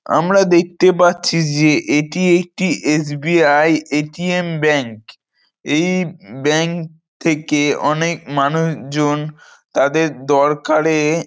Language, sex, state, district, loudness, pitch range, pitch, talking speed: Bengali, male, West Bengal, North 24 Parganas, -16 LUFS, 150-170 Hz, 155 Hz, 95 wpm